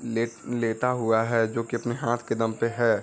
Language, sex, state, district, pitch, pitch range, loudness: Hindi, male, Uttar Pradesh, Varanasi, 115 Hz, 115-120 Hz, -26 LUFS